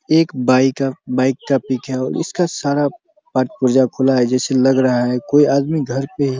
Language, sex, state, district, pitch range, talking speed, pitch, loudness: Hindi, male, Bihar, Araria, 130-145 Hz, 215 wpm, 135 Hz, -17 LUFS